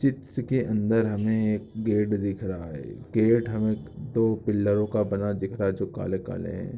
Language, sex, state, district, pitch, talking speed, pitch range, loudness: Hindi, male, Jharkhand, Jamtara, 105 Hz, 195 wpm, 100-115 Hz, -26 LUFS